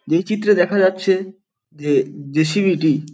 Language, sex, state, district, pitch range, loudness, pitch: Bengali, male, West Bengal, Paschim Medinipur, 155-195 Hz, -18 LUFS, 185 Hz